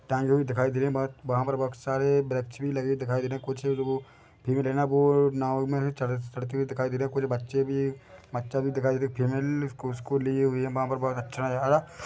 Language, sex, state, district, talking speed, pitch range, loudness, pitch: Hindi, male, Chhattisgarh, Bilaspur, 255 wpm, 130-135 Hz, -28 LUFS, 135 Hz